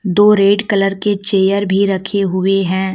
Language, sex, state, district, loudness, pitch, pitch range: Hindi, female, Jharkhand, Deoghar, -14 LUFS, 195 Hz, 190-200 Hz